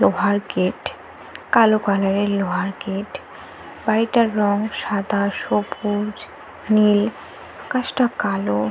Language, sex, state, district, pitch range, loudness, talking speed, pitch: Bengali, female, Jharkhand, Jamtara, 195-220 Hz, -20 LUFS, 115 wpm, 205 Hz